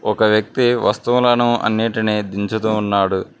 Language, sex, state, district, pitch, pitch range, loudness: Telugu, male, Telangana, Mahabubabad, 110 Hz, 105-120 Hz, -17 LUFS